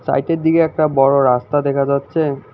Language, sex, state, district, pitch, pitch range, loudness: Bengali, male, West Bengal, Alipurduar, 140 Hz, 135-160 Hz, -16 LUFS